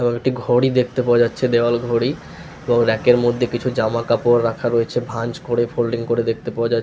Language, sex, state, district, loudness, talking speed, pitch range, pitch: Bengali, male, West Bengal, Paschim Medinipur, -19 LUFS, 200 wpm, 115-120 Hz, 120 Hz